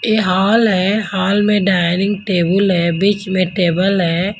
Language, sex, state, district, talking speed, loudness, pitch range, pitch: Hindi, female, Haryana, Jhajjar, 165 wpm, -15 LUFS, 180-205 Hz, 195 Hz